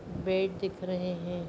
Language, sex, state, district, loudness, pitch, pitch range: Hindi, female, Bihar, Begusarai, -32 LUFS, 185 Hz, 180-190 Hz